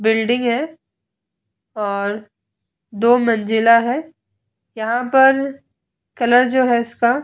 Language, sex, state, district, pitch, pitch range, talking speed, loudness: Hindi, female, Bihar, Vaishali, 235 Hz, 220-255 Hz, 110 wpm, -17 LUFS